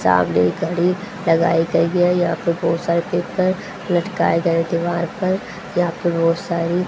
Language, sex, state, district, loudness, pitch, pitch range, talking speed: Hindi, female, Haryana, Jhajjar, -19 LUFS, 170 Hz, 165-180 Hz, 165 wpm